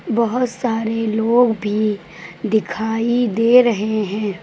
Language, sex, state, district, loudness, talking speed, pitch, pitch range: Hindi, female, Uttar Pradesh, Lucknow, -18 LUFS, 110 wpm, 220 Hz, 210-235 Hz